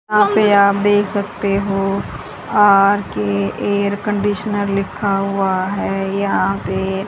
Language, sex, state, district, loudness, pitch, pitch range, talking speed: Hindi, female, Haryana, Charkhi Dadri, -17 LUFS, 200 Hz, 195-205 Hz, 110 wpm